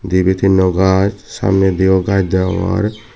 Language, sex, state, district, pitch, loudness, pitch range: Chakma, male, Tripura, Dhalai, 95 Hz, -14 LUFS, 95-100 Hz